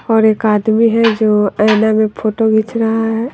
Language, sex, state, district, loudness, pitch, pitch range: Hindi, female, Bihar, West Champaran, -13 LUFS, 220 Hz, 215-225 Hz